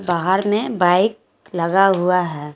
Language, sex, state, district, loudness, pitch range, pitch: Hindi, female, Jharkhand, Garhwa, -17 LUFS, 175-195 Hz, 180 Hz